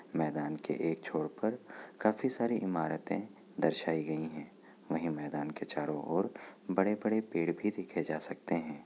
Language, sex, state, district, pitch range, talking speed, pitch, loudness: Hindi, male, Bihar, Kishanganj, 75-105 Hz, 160 wpm, 80 Hz, -35 LUFS